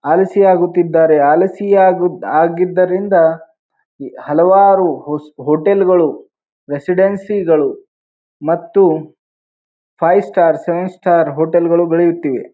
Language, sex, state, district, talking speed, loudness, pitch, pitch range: Kannada, male, Karnataka, Bijapur, 80 wpm, -13 LUFS, 180 Hz, 165-195 Hz